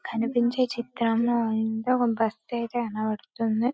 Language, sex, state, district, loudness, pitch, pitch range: Telugu, female, Telangana, Karimnagar, -26 LUFS, 235 Hz, 225-240 Hz